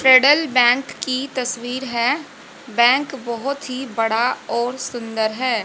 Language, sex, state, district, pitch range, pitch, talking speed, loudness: Hindi, female, Haryana, Jhajjar, 235-265 Hz, 255 Hz, 125 wpm, -19 LUFS